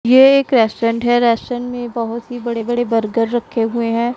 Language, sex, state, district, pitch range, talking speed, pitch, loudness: Hindi, female, Punjab, Pathankot, 230-245 Hz, 200 wpm, 235 Hz, -16 LUFS